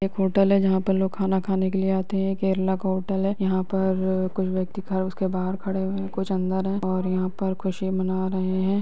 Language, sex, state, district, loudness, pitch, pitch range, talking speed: Hindi, female, Bihar, Lakhisarai, -24 LUFS, 190 Hz, 185-195 Hz, 250 wpm